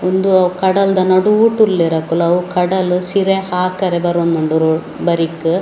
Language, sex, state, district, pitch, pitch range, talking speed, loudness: Tulu, female, Karnataka, Dakshina Kannada, 180 Hz, 170-190 Hz, 140 wpm, -14 LUFS